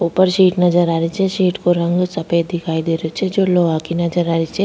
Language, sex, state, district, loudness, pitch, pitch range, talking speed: Rajasthani, female, Rajasthan, Nagaur, -17 LUFS, 175 Hz, 165-185 Hz, 270 wpm